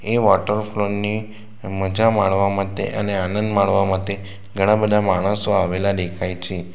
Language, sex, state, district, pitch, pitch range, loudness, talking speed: Gujarati, male, Gujarat, Valsad, 100 Hz, 95-105 Hz, -20 LUFS, 150 wpm